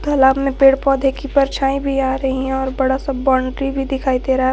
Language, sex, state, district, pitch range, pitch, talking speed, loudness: Hindi, female, Jharkhand, Garhwa, 265-275 Hz, 270 Hz, 250 wpm, -17 LUFS